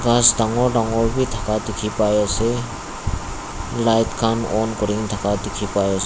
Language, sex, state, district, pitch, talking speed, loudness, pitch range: Nagamese, male, Nagaland, Dimapur, 110 Hz, 160 wpm, -20 LUFS, 100-115 Hz